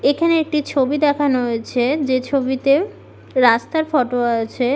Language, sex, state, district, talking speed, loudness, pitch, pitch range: Bengali, female, West Bengal, Malda, 140 wpm, -18 LUFS, 275 Hz, 245-295 Hz